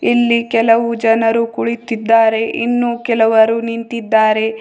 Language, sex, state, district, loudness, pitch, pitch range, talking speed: Kannada, female, Karnataka, Bidar, -14 LUFS, 230 Hz, 225-235 Hz, 90 wpm